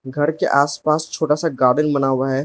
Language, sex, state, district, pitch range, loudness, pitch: Hindi, male, Arunachal Pradesh, Lower Dibang Valley, 135-155 Hz, -18 LUFS, 145 Hz